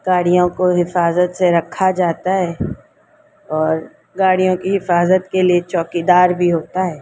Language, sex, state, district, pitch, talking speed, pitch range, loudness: Hindi, female, Delhi, New Delhi, 180 Hz, 145 wpm, 175-185 Hz, -16 LUFS